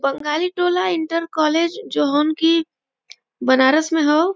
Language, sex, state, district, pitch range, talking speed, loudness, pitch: Bhojpuri, female, Uttar Pradesh, Varanasi, 300-340 Hz, 110 wpm, -18 LUFS, 320 Hz